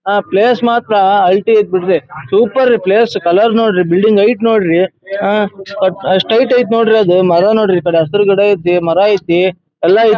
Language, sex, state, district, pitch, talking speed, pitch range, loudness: Kannada, male, Karnataka, Dharwad, 200 Hz, 185 wpm, 185-225 Hz, -11 LUFS